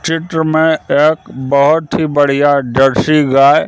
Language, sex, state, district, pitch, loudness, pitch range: Hindi, male, Madhya Pradesh, Katni, 150 Hz, -12 LUFS, 140-160 Hz